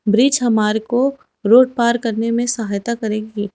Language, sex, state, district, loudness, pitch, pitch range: Hindi, female, Chhattisgarh, Raipur, -17 LUFS, 230 Hz, 215-245 Hz